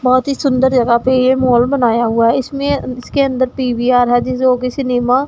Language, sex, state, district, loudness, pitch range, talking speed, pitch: Hindi, female, Punjab, Pathankot, -14 LUFS, 245-265 Hz, 250 wpm, 255 Hz